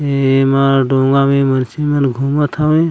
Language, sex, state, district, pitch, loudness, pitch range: Chhattisgarhi, male, Chhattisgarh, Raigarh, 140 Hz, -14 LUFS, 135-145 Hz